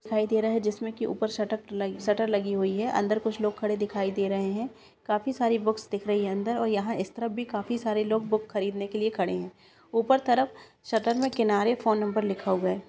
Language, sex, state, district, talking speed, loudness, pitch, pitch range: Hindi, female, Bihar, Saharsa, 245 wpm, -28 LUFS, 215 Hz, 200-225 Hz